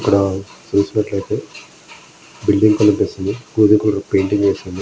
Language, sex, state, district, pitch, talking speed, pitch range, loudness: Telugu, male, Andhra Pradesh, Srikakulam, 100 Hz, 125 wpm, 100-105 Hz, -17 LUFS